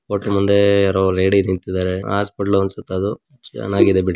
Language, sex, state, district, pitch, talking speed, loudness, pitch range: Kannada, female, Karnataka, Mysore, 100 Hz, 145 wpm, -18 LUFS, 95-100 Hz